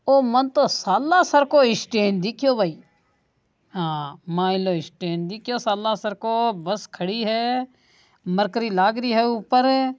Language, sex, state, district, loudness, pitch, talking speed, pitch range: Marwari, male, Rajasthan, Nagaur, -21 LUFS, 220 Hz, 145 wpm, 190-255 Hz